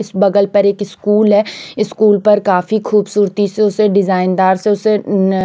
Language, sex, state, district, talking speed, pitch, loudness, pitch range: Hindi, female, Chandigarh, Chandigarh, 185 wpm, 205 Hz, -13 LUFS, 195-210 Hz